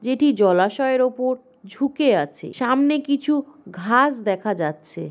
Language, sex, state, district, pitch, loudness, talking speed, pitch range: Bengali, female, West Bengal, North 24 Parganas, 255 Hz, -20 LUFS, 115 wpm, 200-280 Hz